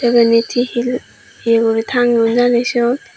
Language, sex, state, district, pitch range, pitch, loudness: Chakma, female, Tripura, Dhalai, 230-245 Hz, 240 Hz, -15 LUFS